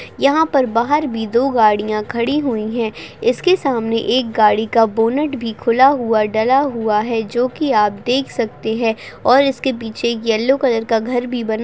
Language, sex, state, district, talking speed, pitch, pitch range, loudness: Hindi, female, Bihar, Saharsa, 190 wpm, 235 Hz, 220-265 Hz, -17 LUFS